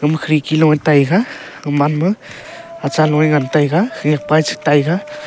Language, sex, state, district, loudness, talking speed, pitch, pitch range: Wancho, male, Arunachal Pradesh, Longding, -15 LUFS, 135 wpm, 155 Hz, 150-190 Hz